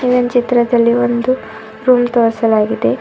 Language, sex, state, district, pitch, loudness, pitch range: Kannada, female, Karnataka, Bidar, 240 Hz, -14 LUFS, 220-245 Hz